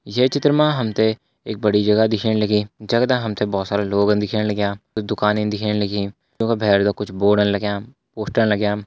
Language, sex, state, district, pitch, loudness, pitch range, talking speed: Hindi, male, Uttarakhand, Uttarkashi, 105 Hz, -19 LUFS, 105-110 Hz, 175 wpm